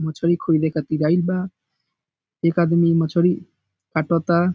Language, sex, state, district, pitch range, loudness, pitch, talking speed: Bhojpuri, male, Bihar, Saran, 160-175 Hz, -20 LUFS, 170 Hz, 130 wpm